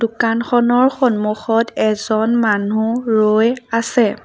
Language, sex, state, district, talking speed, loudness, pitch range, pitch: Assamese, female, Assam, Sonitpur, 85 wpm, -16 LUFS, 215-240 Hz, 225 Hz